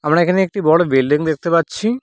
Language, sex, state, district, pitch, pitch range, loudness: Bengali, male, West Bengal, Cooch Behar, 165 Hz, 155-190 Hz, -16 LUFS